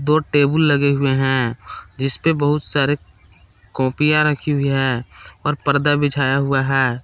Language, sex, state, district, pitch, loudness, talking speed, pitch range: Hindi, male, Jharkhand, Palamu, 140 Hz, -18 LUFS, 145 wpm, 130-145 Hz